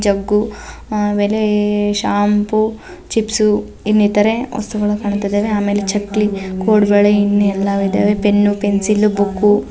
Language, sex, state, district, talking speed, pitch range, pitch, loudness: Kannada, female, Karnataka, Chamarajanagar, 100 wpm, 205-210 Hz, 205 Hz, -15 LUFS